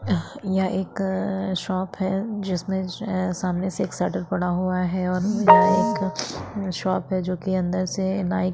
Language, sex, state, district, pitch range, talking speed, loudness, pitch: Hindi, female, Chhattisgarh, Sukma, 185-190 Hz, 155 wpm, -23 LUFS, 190 Hz